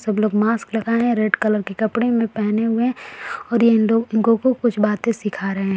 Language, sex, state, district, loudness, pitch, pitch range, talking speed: Hindi, female, Uttar Pradesh, Varanasi, -19 LUFS, 225 Hz, 210-230 Hz, 230 wpm